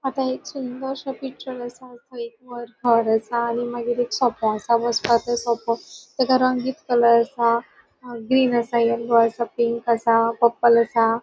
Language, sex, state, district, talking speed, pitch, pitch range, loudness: Konkani, female, Goa, North and South Goa, 145 wpm, 235 Hz, 235-250 Hz, -21 LUFS